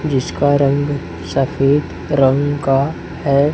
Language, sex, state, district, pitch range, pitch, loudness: Hindi, male, Chhattisgarh, Raipur, 135-145 Hz, 140 Hz, -17 LUFS